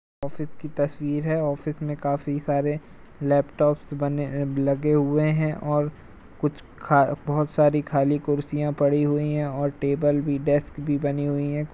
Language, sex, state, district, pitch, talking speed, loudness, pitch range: Hindi, male, Uttar Pradesh, Jalaun, 145 Hz, 170 wpm, -24 LUFS, 145-150 Hz